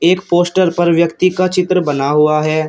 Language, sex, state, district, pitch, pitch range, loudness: Hindi, male, Uttar Pradesh, Shamli, 175 Hz, 155-185 Hz, -13 LUFS